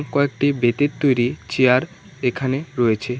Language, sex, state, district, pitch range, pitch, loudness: Bengali, male, West Bengal, Cooch Behar, 125-145 Hz, 130 Hz, -20 LUFS